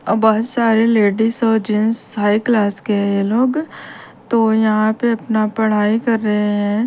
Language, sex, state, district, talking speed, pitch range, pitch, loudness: Hindi, female, Bihar, Patna, 185 wpm, 210-230 Hz, 220 Hz, -16 LUFS